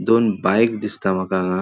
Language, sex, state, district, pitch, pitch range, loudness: Konkani, male, Goa, North and South Goa, 105 Hz, 95-115 Hz, -19 LUFS